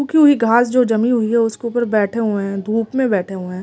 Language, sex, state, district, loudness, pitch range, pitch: Hindi, female, Delhi, New Delhi, -17 LUFS, 210-240 Hz, 225 Hz